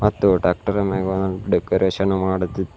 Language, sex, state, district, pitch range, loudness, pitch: Kannada, male, Karnataka, Bidar, 95-100 Hz, -20 LUFS, 95 Hz